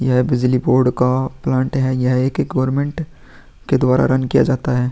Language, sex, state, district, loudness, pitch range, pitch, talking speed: Hindi, male, Bihar, Vaishali, -17 LUFS, 125-135 Hz, 130 Hz, 180 wpm